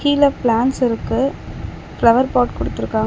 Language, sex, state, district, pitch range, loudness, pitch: Tamil, female, Tamil Nadu, Chennai, 230-270 Hz, -17 LUFS, 250 Hz